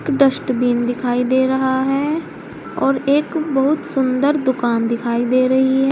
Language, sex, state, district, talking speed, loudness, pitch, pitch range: Hindi, female, Uttar Pradesh, Saharanpur, 140 wpm, -17 LUFS, 265 Hz, 250-275 Hz